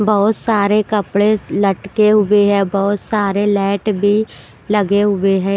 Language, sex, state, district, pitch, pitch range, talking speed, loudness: Hindi, female, Punjab, Pathankot, 205 Hz, 200-210 Hz, 150 wpm, -15 LUFS